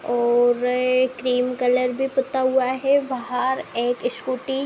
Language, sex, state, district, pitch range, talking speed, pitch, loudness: Hindi, female, Uttar Pradesh, Budaun, 245-260 Hz, 140 wpm, 255 Hz, -21 LUFS